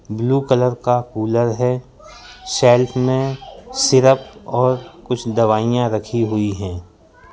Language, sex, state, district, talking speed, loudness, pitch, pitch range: Hindi, male, Madhya Pradesh, Katni, 115 wpm, -18 LUFS, 125 Hz, 115-130 Hz